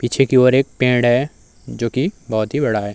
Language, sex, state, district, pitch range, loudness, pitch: Hindi, male, Uttar Pradesh, Muzaffarnagar, 115-135 Hz, -17 LUFS, 125 Hz